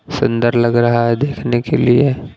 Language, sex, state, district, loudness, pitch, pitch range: Hindi, male, Punjab, Pathankot, -15 LUFS, 120 Hz, 120-140 Hz